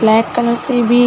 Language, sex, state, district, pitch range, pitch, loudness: Hindi, female, Chhattisgarh, Bilaspur, 230-245 Hz, 240 Hz, -14 LUFS